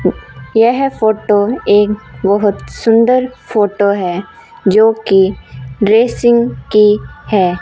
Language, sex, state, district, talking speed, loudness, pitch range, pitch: Hindi, female, Rajasthan, Bikaner, 95 wpm, -13 LUFS, 195-225 Hz, 210 Hz